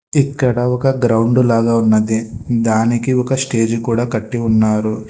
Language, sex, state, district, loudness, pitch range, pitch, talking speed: Telugu, male, Telangana, Hyderabad, -15 LUFS, 110-125 Hz, 115 Hz, 130 wpm